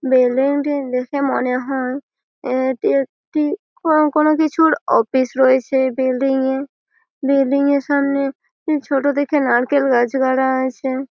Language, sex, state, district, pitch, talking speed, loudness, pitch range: Bengali, female, West Bengal, Malda, 275 Hz, 120 wpm, -17 LUFS, 260-285 Hz